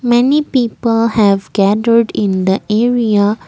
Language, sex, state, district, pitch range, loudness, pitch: English, female, Assam, Kamrup Metropolitan, 205-240 Hz, -13 LUFS, 225 Hz